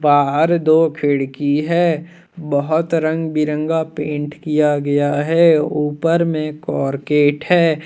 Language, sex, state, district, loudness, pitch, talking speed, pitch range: Hindi, male, Jharkhand, Deoghar, -17 LUFS, 155 Hz, 115 wpm, 145-165 Hz